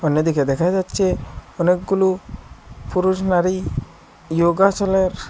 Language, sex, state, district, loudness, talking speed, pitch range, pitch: Bengali, male, Assam, Hailakandi, -19 LUFS, 70 wpm, 170-190 Hz, 185 Hz